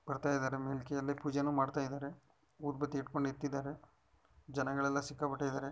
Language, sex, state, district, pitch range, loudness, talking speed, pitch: Kannada, male, Karnataka, Shimoga, 135-145 Hz, -38 LUFS, 115 wpm, 140 Hz